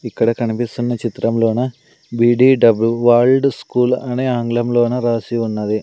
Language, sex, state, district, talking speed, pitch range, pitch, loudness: Telugu, male, Andhra Pradesh, Sri Satya Sai, 115 wpm, 115-125 Hz, 120 Hz, -16 LUFS